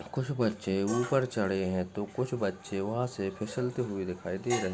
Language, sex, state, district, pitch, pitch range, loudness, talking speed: Hindi, male, Chhattisgarh, Bastar, 105 Hz, 95-125 Hz, -32 LUFS, 190 wpm